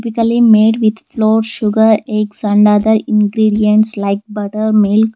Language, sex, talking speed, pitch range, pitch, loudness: English, female, 140 wpm, 210-220 Hz, 215 Hz, -12 LUFS